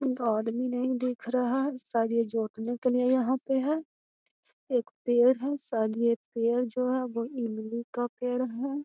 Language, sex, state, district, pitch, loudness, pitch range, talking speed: Magahi, female, Bihar, Gaya, 245 Hz, -29 LUFS, 230-255 Hz, 190 wpm